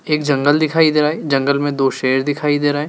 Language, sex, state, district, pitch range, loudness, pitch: Hindi, male, Madhya Pradesh, Dhar, 140-150 Hz, -16 LUFS, 145 Hz